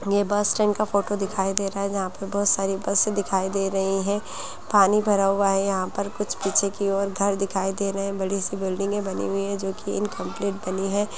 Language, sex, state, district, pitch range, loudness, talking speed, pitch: Hindi, female, Bihar, Muzaffarpur, 195-200 Hz, -24 LUFS, 230 wpm, 195 Hz